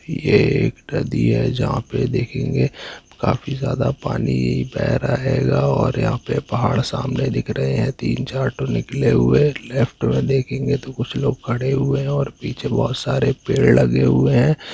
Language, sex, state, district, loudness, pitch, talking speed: Hindi, male, Jharkhand, Jamtara, -19 LUFS, 130 Hz, 165 wpm